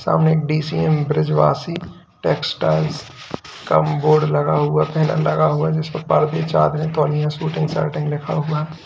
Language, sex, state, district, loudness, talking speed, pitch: Hindi, male, Uttar Pradesh, Lalitpur, -19 LUFS, 140 wpm, 150 Hz